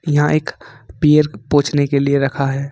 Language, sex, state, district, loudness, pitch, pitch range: Hindi, male, Jharkhand, Ranchi, -16 LUFS, 145 Hz, 140-150 Hz